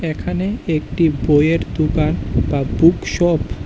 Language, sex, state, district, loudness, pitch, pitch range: Bengali, male, Tripura, West Tripura, -17 LUFS, 155 Hz, 150-165 Hz